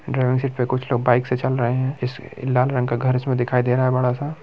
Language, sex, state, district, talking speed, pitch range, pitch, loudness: Hindi, male, Bihar, Muzaffarpur, 325 wpm, 125-130 Hz, 125 Hz, -21 LUFS